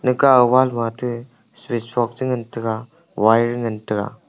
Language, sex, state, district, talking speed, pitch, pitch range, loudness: Wancho, male, Arunachal Pradesh, Longding, 155 wpm, 120 Hz, 115-125 Hz, -19 LUFS